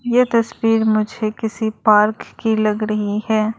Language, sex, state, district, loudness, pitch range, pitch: Hindi, female, Arunachal Pradesh, Lower Dibang Valley, -18 LUFS, 215-225 Hz, 220 Hz